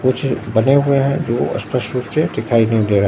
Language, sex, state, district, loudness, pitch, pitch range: Hindi, male, Bihar, Katihar, -17 LUFS, 120 Hz, 110-135 Hz